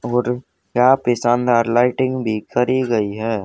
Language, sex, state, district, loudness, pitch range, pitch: Hindi, male, Haryana, Rohtak, -18 LUFS, 115-125 Hz, 120 Hz